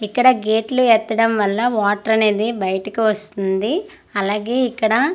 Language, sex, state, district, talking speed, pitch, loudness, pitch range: Telugu, female, Andhra Pradesh, Manyam, 130 wpm, 220 Hz, -18 LUFS, 210-245 Hz